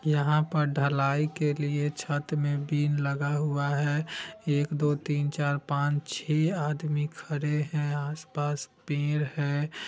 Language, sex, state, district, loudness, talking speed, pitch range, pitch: Hindi, male, Bihar, Vaishali, -29 LUFS, 140 wpm, 145-150 Hz, 145 Hz